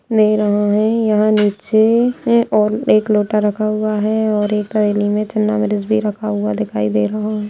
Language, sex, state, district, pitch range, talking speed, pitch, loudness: Hindi, female, Bihar, Darbhanga, 205-215 Hz, 170 wpm, 210 Hz, -16 LUFS